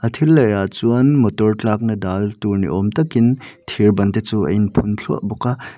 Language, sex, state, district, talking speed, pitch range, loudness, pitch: Mizo, male, Mizoram, Aizawl, 210 wpm, 105-120 Hz, -17 LUFS, 110 Hz